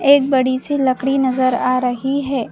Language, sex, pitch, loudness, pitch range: Hindi, female, 260 Hz, -17 LUFS, 255-275 Hz